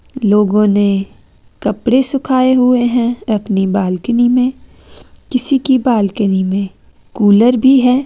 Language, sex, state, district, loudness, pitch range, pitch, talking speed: Hindi, female, Chandigarh, Chandigarh, -13 LUFS, 205-255 Hz, 240 Hz, 120 wpm